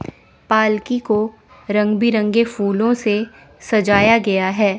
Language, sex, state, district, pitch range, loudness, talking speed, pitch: Hindi, female, Chandigarh, Chandigarh, 205-225 Hz, -17 LUFS, 115 wpm, 215 Hz